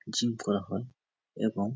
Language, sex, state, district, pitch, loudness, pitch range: Bengali, male, West Bengal, Jhargram, 110 Hz, -32 LUFS, 100-120 Hz